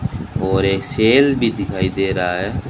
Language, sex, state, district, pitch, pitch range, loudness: Hindi, male, Rajasthan, Bikaner, 95 Hz, 95-115 Hz, -17 LUFS